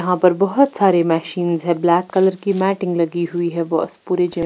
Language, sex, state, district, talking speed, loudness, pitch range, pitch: Hindi, female, Bihar, Patna, 215 wpm, -18 LUFS, 170-190 Hz, 175 Hz